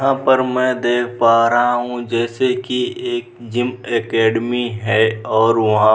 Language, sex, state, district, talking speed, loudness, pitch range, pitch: Hindi, male, Bihar, Vaishali, 160 wpm, -17 LUFS, 115-125 Hz, 120 Hz